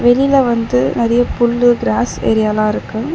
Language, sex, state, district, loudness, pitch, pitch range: Tamil, female, Tamil Nadu, Chennai, -14 LUFS, 235 Hz, 220-245 Hz